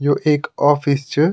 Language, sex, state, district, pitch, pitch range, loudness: Garhwali, male, Uttarakhand, Tehri Garhwal, 145 Hz, 145-155 Hz, -17 LUFS